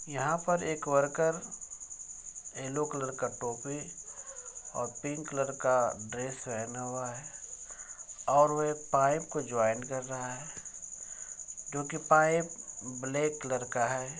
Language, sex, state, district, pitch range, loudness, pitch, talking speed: Hindi, male, Bihar, Muzaffarpur, 125-150 Hz, -33 LUFS, 135 Hz, 135 wpm